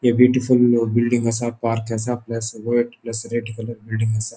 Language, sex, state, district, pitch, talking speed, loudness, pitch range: Konkani, male, Goa, North and South Goa, 115 Hz, 165 wpm, -20 LUFS, 115-120 Hz